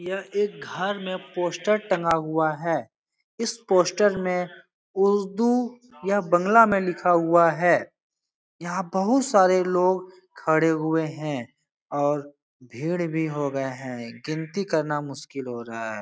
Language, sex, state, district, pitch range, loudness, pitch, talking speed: Hindi, male, Bihar, Jahanabad, 155-190 Hz, -24 LUFS, 175 Hz, 140 wpm